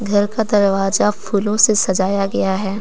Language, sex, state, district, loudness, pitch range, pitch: Hindi, female, Jharkhand, Deoghar, -16 LUFS, 195-210 Hz, 205 Hz